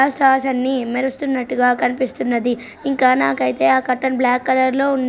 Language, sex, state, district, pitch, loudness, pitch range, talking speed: Telugu, female, Andhra Pradesh, Srikakulam, 255 Hz, -17 LUFS, 245-265 Hz, 155 wpm